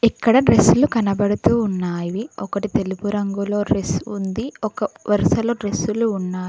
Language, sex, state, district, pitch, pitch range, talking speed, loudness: Telugu, female, Telangana, Mahabubabad, 205 Hz, 195-225 Hz, 120 wpm, -20 LUFS